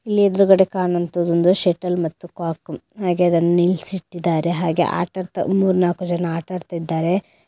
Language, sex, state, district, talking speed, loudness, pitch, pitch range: Kannada, female, Karnataka, Dakshina Kannada, 135 wpm, -19 LUFS, 175 Hz, 170-185 Hz